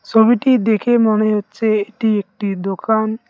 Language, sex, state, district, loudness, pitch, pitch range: Bengali, male, West Bengal, Cooch Behar, -16 LUFS, 220 Hz, 210-225 Hz